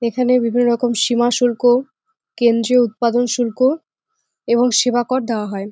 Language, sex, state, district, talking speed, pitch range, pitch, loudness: Bengali, female, West Bengal, Jalpaiguri, 135 wpm, 235-250 Hz, 245 Hz, -17 LUFS